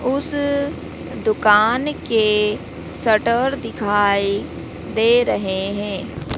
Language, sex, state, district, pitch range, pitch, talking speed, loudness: Hindi, female, Madhya Pradesh, Dhar, 205-255 Hz, 220 Hz, 75 wpm, -19 LUFS